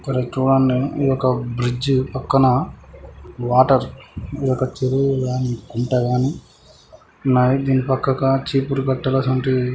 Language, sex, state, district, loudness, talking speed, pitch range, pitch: Telugu, male, Andhra Pradesh, Guntur, -19 LUFS, 110 wpm, 125-135 Hz, 130 Hz